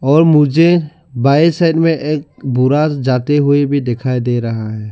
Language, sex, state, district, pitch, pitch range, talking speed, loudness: Hindi, male, Arunachal Pradesh, Lower Dibang Valley, 145 Hz, 125-155 Hz, 170 wpm, -13 LUFS